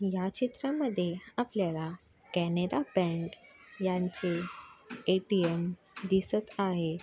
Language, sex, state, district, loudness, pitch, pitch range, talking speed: Marathi, female, Maharashtra, Sindhudurg, -32 LUFS, 185 Hz, 175-210 Hz, 75 wpm